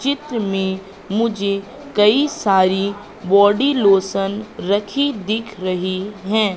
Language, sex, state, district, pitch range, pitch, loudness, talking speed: Hindi, female, Madhya Pradesh, Katni, 195-220 Hz, 205 Hz, -18 LUFS, 100 wpm